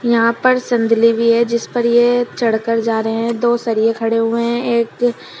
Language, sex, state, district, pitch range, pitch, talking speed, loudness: Hindi, female, Uttar Pradesh, Shamli, 230-240 Hz, 230 Hz, 200 wpm, -16 LUFS